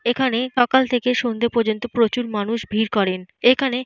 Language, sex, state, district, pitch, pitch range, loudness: Bengali, female, Jharkhand, Jamtara, 240 Hz, 220-250 Hz, -20 LUFS